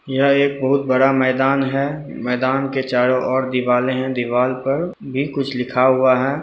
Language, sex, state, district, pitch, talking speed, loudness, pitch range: Hindi, male, Bihar, Purnia, 130 Hz, 175 wpm, -18 LUFS, 130-135 Hz